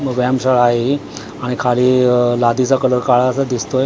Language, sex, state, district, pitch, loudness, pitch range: Marathi, male, Maharashtra, Mumbai Suburban, 125 Hz, -15 LUFS, 125-130 Hz